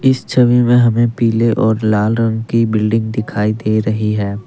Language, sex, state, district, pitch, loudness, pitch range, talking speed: Hindi, male, Assam, Kamrup Metropolitan, 110 Hz, -14 LUFS, 110-115 Hz, 190 wpm